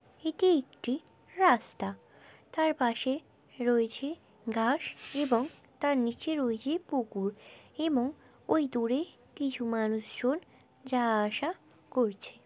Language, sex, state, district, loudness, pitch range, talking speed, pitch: Bengali, female, West Bengal, Kolkata, -31 LUFS, 235-310 Hz, 100 wpm, 260 Hz